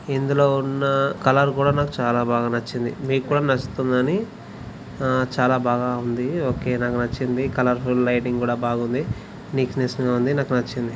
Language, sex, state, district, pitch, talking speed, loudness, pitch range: Telugu, male, Telangana, Karimnagar, 125 Hz, 155 wpm, -22 LUFS, 120-135 Hz